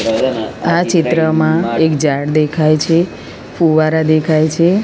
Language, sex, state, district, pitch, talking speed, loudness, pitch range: Gujarati, female, Gujarat, Gandhinagar, 155 Hz, 110 wpm, -14 LUFS, 155-165 Hz